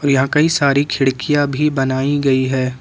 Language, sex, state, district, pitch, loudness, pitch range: Hindi, male, Jharkhand, Ranchi, 140 Hz, -16 LUFS, 130-145 Hz